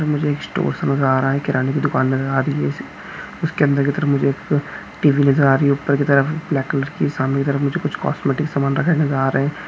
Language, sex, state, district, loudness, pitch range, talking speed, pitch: Hindi, male, Chhattisgarh, Bastar, -19 LUFS, 135-145 Hz, 280 wpm, 140 Hz